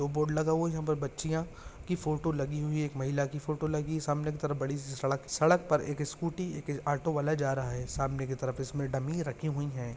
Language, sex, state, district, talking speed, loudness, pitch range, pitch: Hindi, male, Maharashtra, Pune, 245 wpm, -32 LUFS, 135-155 Hz, 145 Hz